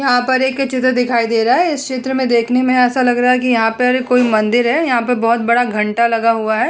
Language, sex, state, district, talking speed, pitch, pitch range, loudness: Hindi, female, Uttar Pradesh, Hamirpur, 280 wpm, 245 Hz, 235-255 Hz, -14 LUFS